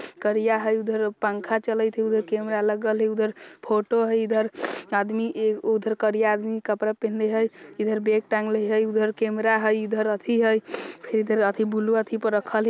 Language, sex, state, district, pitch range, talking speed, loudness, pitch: Bajjika, female, Bihar, Vaishali, 215-220 Hz, 175 wpm, -24 LUFS, 220 Hz